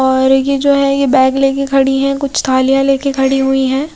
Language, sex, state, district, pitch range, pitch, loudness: Hindi, female, Chhattisgarh, Raipur, 265-275 Hz, 270 Hz, -12 LUFS